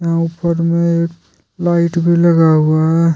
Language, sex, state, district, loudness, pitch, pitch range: Hindi, male, Jharkhand, Deoghar, -14 LUFS, 170 Hz, 165-170 Hz